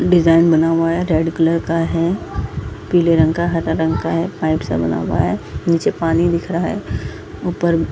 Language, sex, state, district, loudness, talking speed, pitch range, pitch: Hindi, female, Chhattisgarh, Balrampur, -17 LUFS, 205 wpm, 160-170 Hz, 165 Hz